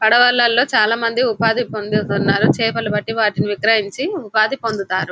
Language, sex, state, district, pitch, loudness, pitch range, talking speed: Telugu, female, Telangana, Nalgonda, 220 Hz, -17 LUFS, 210-230 Hz, 140 wpm